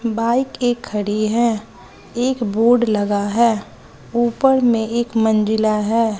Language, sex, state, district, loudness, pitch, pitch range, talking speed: Hindi, female, Bihar, West Champaran, -18 LUFS, 230 Hz, 215-240 Hz, 125 wpm